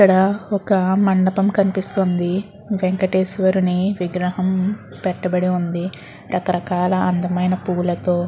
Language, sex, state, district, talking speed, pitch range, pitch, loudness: Telugu, female, Andhra Pradesh, Guntur, 115 wpm, 180-195 Hz, 185 Hz, -19 LUFS